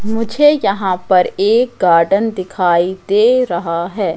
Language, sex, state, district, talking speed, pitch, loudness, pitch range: Hindi, female, Madhya Pradesh, Katni, 130 wpm, 195 Hz, -14 LUFS, 180-225 Hz